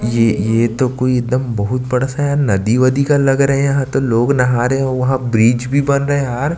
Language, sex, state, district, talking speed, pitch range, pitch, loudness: Hindi, male, Chhattisgarh, Sukma, 235 wpm, 120-140 Hz, 130 Hz, -15 LUFS